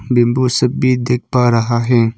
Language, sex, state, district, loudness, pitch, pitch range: Hindi, male, Arunachal Pradesh, Papum Pare, -14 LUFS, 125 Hz, 120-125 Hz